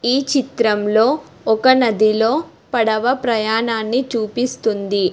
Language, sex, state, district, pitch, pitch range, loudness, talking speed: Telugu, female, Telangana, Hyderabad, 230 Hz, 220-255 Hz, -17 LUFS, 80 wpm